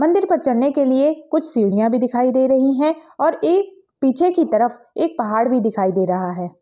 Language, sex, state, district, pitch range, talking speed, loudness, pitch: Hindi, female, Bihar, Begusarai, 240-320 Hz, 220 wpm, -18 LUFS, 265 Hz